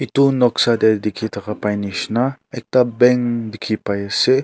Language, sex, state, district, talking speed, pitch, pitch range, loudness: Nagamese, male, Nagaland, Kohima, 160 wpm, 110 Hz, 105-125 Hz, -18 LUFS